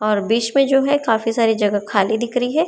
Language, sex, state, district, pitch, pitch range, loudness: Hindi, female, Maharashtra, Chandrapur, 230 Hz, 215-270 Hz, -18 LUFS